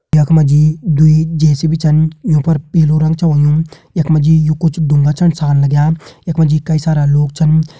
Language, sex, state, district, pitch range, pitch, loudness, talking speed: Hindi, male, Uttarakhand, Uttarkashi, 150-160 Hz, 155 Hz, -12 LUFS, 215 wpm